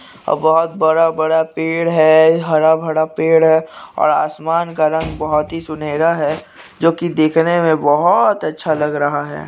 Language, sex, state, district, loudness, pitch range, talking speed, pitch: Hindi, male, Chhattisgarh, Bastar, -15 LUFS, 155-165 Hz, 175 wpm, 160 Hz